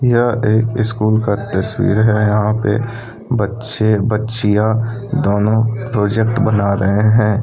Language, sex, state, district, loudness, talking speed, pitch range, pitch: Hindi, male, Jharkhand, Deoghar, -15 LUFS, 120 wpm, 105-115 Hz, 110 Hz